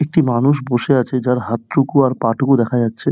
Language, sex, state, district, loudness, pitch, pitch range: Bengali, male, West Bengal, Dakshin Dinajpur, -16 LUFS, 130 Hz, 120-140 Hz